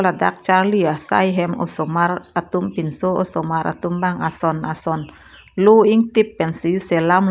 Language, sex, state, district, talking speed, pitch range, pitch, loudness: Karbi, female, Assam, Karbi Anglong, 130 wpm, 165-190 Hz, 175 Hz, -18 LUFS